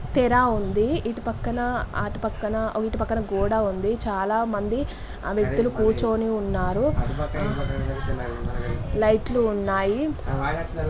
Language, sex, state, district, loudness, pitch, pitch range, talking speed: Telugu, female, Andhra Pradesh, Guntur, -25 LUFS, 220 Hz, 210-230 Hz, 95 wpm